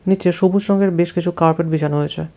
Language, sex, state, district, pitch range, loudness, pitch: Bengali, male, West Bengal, Cooch Behar, 160-190 Hz, -17 LUFS, 175 Hz